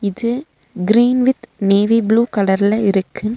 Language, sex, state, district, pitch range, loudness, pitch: Tamil, female, Tamil Nadu, Nilgiris, 200-235 Hz, -16 LUFS, 215 Hz